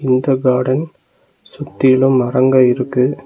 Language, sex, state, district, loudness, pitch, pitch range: Tamil, male, Tamil Nadu, Nilgiris, -14 LUFS, 130 Hz, 125-135 Hz